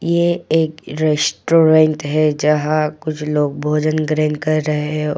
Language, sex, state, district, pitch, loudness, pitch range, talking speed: Hindi, female, Arunachal Pradesh, Papum Pare, 155 Hz, -17 LUFS, 150-155 Hz, 140 wpm